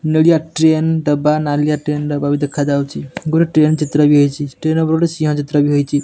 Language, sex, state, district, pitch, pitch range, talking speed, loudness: Odia, male, Odisha, Nuapada, 150 Hz, 145-160 Hz, 200 wpm, -15 LUFS